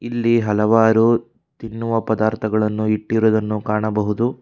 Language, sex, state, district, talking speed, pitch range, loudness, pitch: Kannada, male, Karnataka, Bangalore, 80 wpm, 105-115 Hz, -18 LUFS, 110 Hz